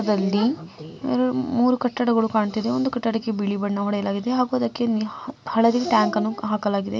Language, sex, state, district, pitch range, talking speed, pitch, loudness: Kannada, female, Karnataka, Mysore, 210-245 Hz, 130 wpm, 225 Hz, -22 LUFS